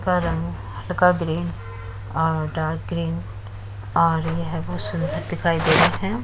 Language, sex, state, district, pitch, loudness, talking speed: Hindi, female, Uttar Pradesh, Muzaffarnagar, 100 Hz, -22 LUFS, 135 wpm